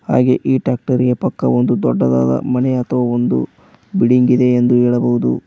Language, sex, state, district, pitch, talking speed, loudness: Kannada, male, Karnataka, Koppal, 120 Hz, 155 wpm, -15 LUFS